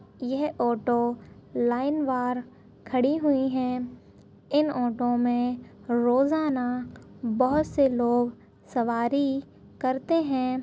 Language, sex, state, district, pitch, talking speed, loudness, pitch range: Hindi, female, Chhattisgarh, Balrampur, 250 Hz, 95 wpm, -26 LUFS, 240-275 Hz